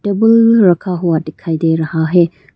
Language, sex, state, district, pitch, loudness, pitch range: Hindi, female, Arunachal Pradesh, Papum Pare, 170 Hz, -13 LUFS, 160-195 Hz